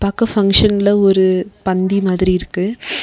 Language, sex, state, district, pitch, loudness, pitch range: Tamil, female, Tamil Nadu, Nilgiris, 195 Hz, -15 LUFS, 185-205 Hz